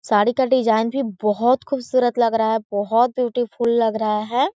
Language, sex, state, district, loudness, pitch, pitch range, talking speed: Hindi, female, Chhattisgarh, Korba, -19 LUFS, 235 Hz, 220-255 Hz, 185 wpm